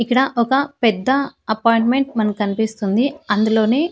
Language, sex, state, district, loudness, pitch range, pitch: Telugu, female, Andhra Pradesh, Annamaya, -18 LUFS, 220-265 Hz, 230 Hz